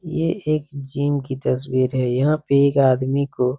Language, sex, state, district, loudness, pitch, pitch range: Hindi, male, Bihar, Saran, -20 LUFS, 140 Hz, 130-145 Hz